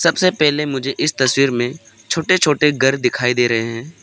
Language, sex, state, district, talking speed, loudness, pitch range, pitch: Hindi, male, Arunachal Pradesh, Papum Pare, 195 wpm, -17 LUFS, 125-150 Hz, 135 Hz